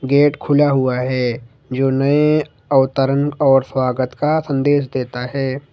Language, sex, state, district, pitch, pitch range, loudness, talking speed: Hindi, male, Jharkhand, Ranchi, 135 Hz, 130-145 Hz, -17 LUFS, 135 wpm